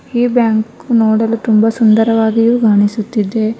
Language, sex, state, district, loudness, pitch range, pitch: Kannada, female, Karnataka, Bangalore, -13 LUFS, 220-230 Hz, 225 Hz